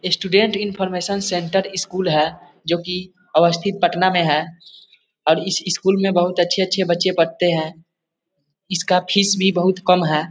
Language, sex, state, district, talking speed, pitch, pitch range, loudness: Hindi, male, Bihar, East Champaran, 150 wpm, 180 Hz, 170-190 Hz, -18 LUFS